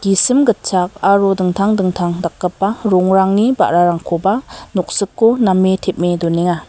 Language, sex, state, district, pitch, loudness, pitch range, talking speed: Garo, female, Meghalaya, West Garo Hills, 190 Hz, -15 LUFS, 175-200 Hz, 110 wpm